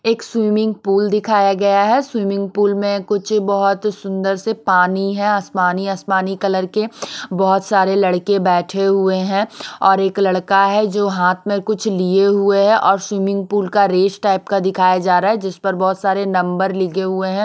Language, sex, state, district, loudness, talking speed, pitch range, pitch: Hindi, female, Maharashtra, Mumbai Suburban, -16 LUFS, 190 wpm, 190-205 Hz, 195 Hz